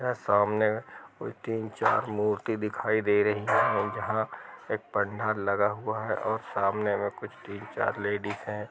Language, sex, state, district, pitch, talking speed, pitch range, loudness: Hindi, male, Chhattisgarh, Rajnandgaon, 105 Hz, 160 wpm, 105-110 Hz, -29 LUFS